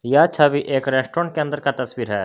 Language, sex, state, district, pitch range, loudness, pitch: Hindi, male, Jharkhand, Garhwa, 130-150 Hz, -20 LUFS, 140 Hz